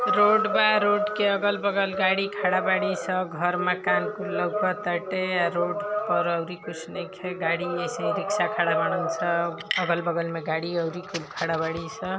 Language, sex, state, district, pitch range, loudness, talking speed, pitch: Hindi, female, Uttar Pradesh, Ghazipur, 170-205 Hz, -25 LUFS, 170 wpm, 185 Hz